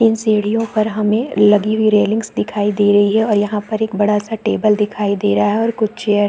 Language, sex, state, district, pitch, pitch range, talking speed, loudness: Hindi, female, Chhattisgarh, Bastar, 210 Hz, 205-220 Hz, 250 wpm, -16 LUFS